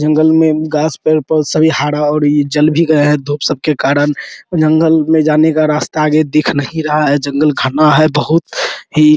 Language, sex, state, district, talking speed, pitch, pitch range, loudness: Hindi, male, Bihar, Araria, 210 wpm, 155 Hz, 150-155 Hz, -12 LUFS